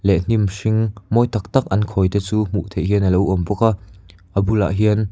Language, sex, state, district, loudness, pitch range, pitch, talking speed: Mizo, male, Mizoram, Aizawl, -19 LUFS, 95-110 Hz, 100 Hz, 245 wpm